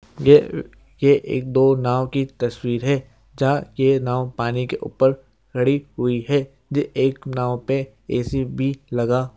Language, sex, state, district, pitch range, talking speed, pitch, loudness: Hindi, male, Chhattisgarh, Jashpur, 125-135 Hz, 155 wpm, 130 Hz, -21 LUFS